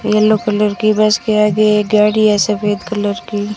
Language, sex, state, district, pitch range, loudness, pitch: Hindi, female, Rajasthan, Jaisalmer, 210-215 Hz, -14 LUFS, 210 Hz